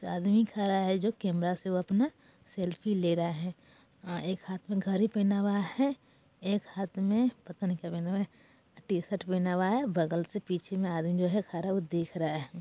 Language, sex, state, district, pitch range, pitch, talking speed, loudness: Bajjika, female, Bihar, Vaishali, 175-200 Hz, 185 Hz, 215 wpm, -31 LUFS